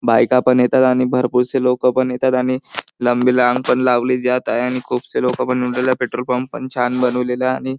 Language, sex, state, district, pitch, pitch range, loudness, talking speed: Marathi, male, Maharashtra, Chandrapur, 125 Hz, 125-130 Hz, -17 LUFS, 210 wpm